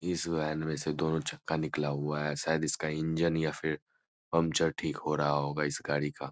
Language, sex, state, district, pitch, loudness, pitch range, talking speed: Hindi, male, Bihar, Darbhanga, 80 Hz, -32 LUFS, 75-80 Hz, 220 wpm